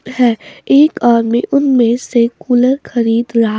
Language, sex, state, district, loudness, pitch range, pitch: Hindi, female, Bihar, West Champaran, -13 LUFS, 230-260 Hz, 240 Hz